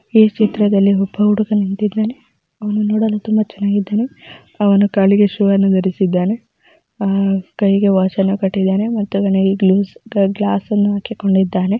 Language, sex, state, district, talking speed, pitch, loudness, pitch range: Kannada, female, Karnataka, Mysore, 110 wpm, 200 Hz, -16 LUFS, 195-210 Hz